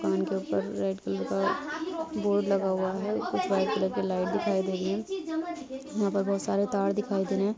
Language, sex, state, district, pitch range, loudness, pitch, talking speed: Hindi, female, Bihar, Saran, 190-210 Hz, -29 LUFS, 195 Hz, 65 wpm